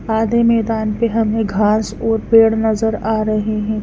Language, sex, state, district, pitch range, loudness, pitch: Hindi, female, Punjab, Fazilka, 215-225 Hz, -16 LUFS, 220 Hz